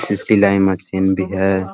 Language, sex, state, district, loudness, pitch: Hindi, male, Bihar, Muzaffarpur, -16 LUFS, 95 Hz